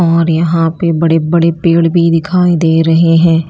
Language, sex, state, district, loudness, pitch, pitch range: Hindi, female, Chhattisgarh, Raipur, -10 LUFS, 165 Hz, 165-170 Hz